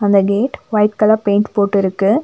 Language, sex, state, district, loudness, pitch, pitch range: Tamil, female, Tamil Nadu, Nilgiris, -15 LUFS, 205 Hz, 200-215 Hz